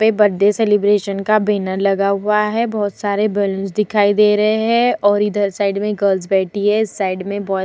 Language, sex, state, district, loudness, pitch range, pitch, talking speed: Hindi, female, Bihar, Vaishali, -16 LUFS, 195-210 Hz, 205 Hz, 210 wpm